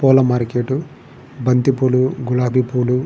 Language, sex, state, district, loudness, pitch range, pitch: Telugu, male, Andhra Pradesh, Srikakulam, -17 LUFS, 125-130 Hz, 125 Hz